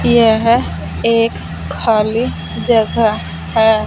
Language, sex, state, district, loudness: Hindi, female, Punjab, Fazilka, -15 LUFS